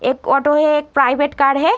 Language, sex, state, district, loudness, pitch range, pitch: Hindi, female, Uttar Pradesh, Muzaffarnagar, -15 LUFS, 275-295 Hz, 280 Hz